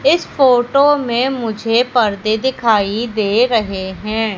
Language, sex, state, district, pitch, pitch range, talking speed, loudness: Hindi, female, Madhya Pradesh, Katni, 230 Hz, 215-255 Hz, 125 wpm, -15 LUFS